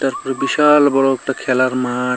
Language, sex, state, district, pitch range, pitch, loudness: Bengali, male, West Bengal, Cooch Behar, 130-140 Hz, 135 Hz, -16 LUFS